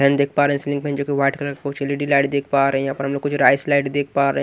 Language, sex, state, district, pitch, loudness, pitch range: Hindi, male, Maharashtra, Washim, 140 Hz, -19 LUFS, 140-145 Hz